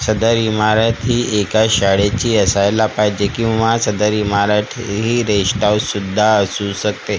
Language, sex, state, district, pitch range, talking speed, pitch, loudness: Marathi, male, Maharashtra, Gondia, 100-110 Hz, 135 wpm, 105 Hz, -15 LUFS